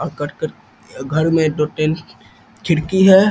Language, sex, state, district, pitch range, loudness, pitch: Hindi, male, Bihar, East Champaran, 145-165 Hz, -17 LUFS, 155 Hz